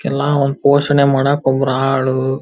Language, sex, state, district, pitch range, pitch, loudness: Kannada, female, Karnataka, Belgaum, 135-140 Hz, 135 Hz, -15 LUFS